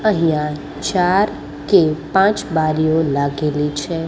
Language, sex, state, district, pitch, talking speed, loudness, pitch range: Gujarati, female, Gujarat, Gandhinagar, 155 Hz, 105 wpm, -17 LUFS, 150-175 Hz